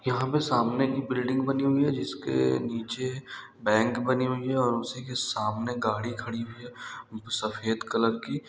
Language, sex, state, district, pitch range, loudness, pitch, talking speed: Hindi, male, Rajasthan, Nagaur, 115-130 Hz, -28 LUFS, 120 Hz, 165 wpm